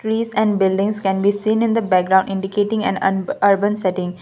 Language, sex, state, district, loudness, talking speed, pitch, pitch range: English, female, Assam, Kamrup Metropolitan, -18 LUFS, 200 wpm, 200 Hz, 190-215 Hz